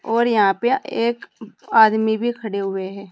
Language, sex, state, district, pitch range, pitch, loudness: Hindi, female, Uttar Pradesh, Saharanpur, 200-235 Hz, 220 Hz, -19 LUFS